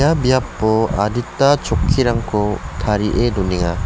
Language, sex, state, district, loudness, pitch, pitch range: Garo, male, Meghalaya, West Garo Hills, -17 LUFS, 110 Hz, 100-130 Hz